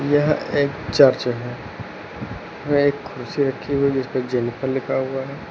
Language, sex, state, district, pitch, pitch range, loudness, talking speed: Hindi, male, Uttar Pradesh, Lucknow, 135 Hz, 130-145 Hz, -21 LUFS, 175 wpm